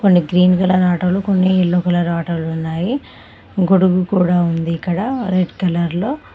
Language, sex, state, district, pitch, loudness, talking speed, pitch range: Telugu, female, Telangana, Mahabubabad, 180 Hz, -16 LUFS, 140 wpm, 175-185 Hz